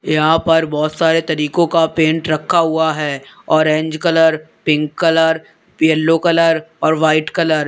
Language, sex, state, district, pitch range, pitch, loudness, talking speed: Hindi, male, Uttar Pradesh, Lalitpur, 155-165 Hz, 160 Hz, -15 LUFS, 155 wpm